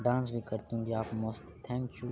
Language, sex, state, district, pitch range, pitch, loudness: Hindi, male, Bihar, Araria, 110-125 Hz, 115 Hz, -36 LUFS